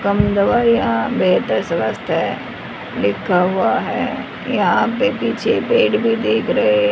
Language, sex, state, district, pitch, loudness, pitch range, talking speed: Hindi, female, Haryana, Charkhi Dadri, 225 Hz, -17 LUFS, 180-245 Hz, 130 wpm